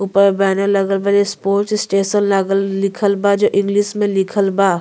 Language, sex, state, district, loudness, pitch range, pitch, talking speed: Bhojpuri, female, Uttar Pradesh, Ghazipur, -16 LUFS, 195-200 Hz, 200 Hz, 175 wpm